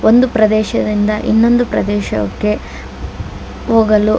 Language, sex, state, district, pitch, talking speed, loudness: Kannada, female, Karnataka, Dakshina Kannada, 210 Hz, 70 wpm, -14 LUFS